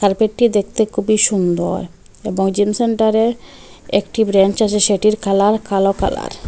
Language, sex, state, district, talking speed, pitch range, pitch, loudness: Bengali, female, Assam, Hailakandi, 140 wpm, 195-220 Hz, 205 Hz, -16 LUFS